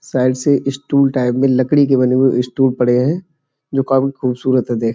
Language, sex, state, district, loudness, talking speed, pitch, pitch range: Hindi, male, Uttar Pradesh, Budaun, -15 LUFS, 205 wpm, 130 Hz, 125-140 Hz